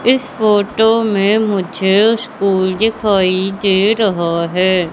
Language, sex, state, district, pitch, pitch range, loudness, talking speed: Hindi, female, Madhya Pradesh, Katni, 200 Hz, 185-220 Hz, -14 LUFS, 110 wpm